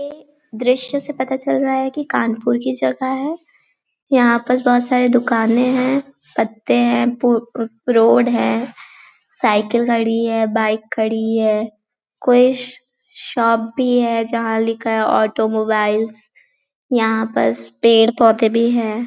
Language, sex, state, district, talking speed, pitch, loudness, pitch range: Hindi, female, Chhattisgarh, Balrampur, 140 wpm, 230 Hz, -17 LUFS, 220-255 Hz